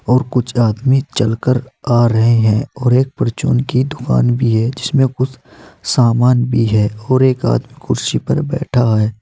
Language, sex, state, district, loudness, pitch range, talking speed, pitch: Hindi, male, Uttar Pradesh, Saharanpur, -15 LUFS, 115-130 Hz, 170 wpm, 125 Hz